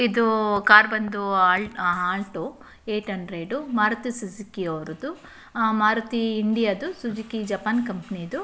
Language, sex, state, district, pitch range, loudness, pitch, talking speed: Kannada, female, Karnataka, Shimoga, 195-230 Hz, -23 LUFS, 215 Hz, 135 wpm